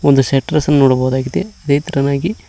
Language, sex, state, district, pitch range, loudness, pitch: Kannada, male, Karnataka, Koppal, 135-150 Hz, -15 LUFS, 140 Hz